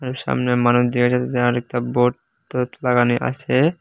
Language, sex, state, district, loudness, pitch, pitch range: Bengali, male, Tripura, Unakoti, -19 LUFS, 125 Hz, 120-125 Hz